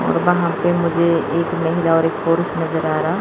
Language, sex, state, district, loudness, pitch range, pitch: Hindi, female, Chandigarh, Chandigarh, -18 LUFS, 165-175 Hz, 170 Hz